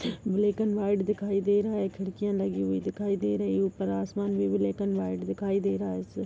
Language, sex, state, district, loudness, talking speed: Hindi, female, Uttar Pradesh, Gorakhpur, -29 LUFS, 250 wpm